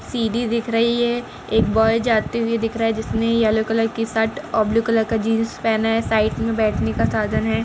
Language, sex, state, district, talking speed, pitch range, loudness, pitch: Hindi, female, Chhattisgarh, Kabirdham, 235 wpm, 220-230 Hz, -20 LUFS, 225 Hz